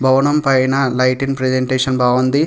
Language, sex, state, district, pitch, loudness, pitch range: Telugu, male, Telangana, Hyderabad, 130 Hz, -15 LUFS, 130-135 Hz